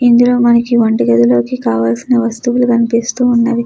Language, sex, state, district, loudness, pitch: Telugu, female, Andhra Pradesh, Chittoor, -12 LUFS, 235 Hz